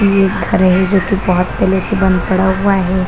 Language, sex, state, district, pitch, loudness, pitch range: Hindi, female, Bihar, Kishanganj, 190 Hz, -13 LUFS, 185-195 Hz